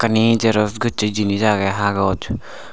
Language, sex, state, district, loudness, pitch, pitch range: Chakma, male, Tripura, Unakoti, -18 LUFS, 105 Hz, 100-115 Hz